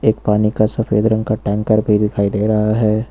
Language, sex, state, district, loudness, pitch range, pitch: Hindi, male, Uttar Pradesh, Lucknow, -16 LUFS, 105-110 Hz, 110 Hz